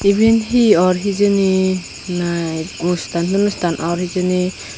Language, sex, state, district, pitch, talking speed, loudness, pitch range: Chakma, female, Tripura, Unakoti, 180 Hz, 125 wpm, -17 LUFS, 175-200 Hz